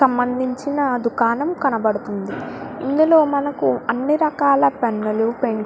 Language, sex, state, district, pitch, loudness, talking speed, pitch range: Telugu, female, Andhra Pradesh, Krishna, 260 Hz, -19 LUFS, 105 wpm, 230-285 Hz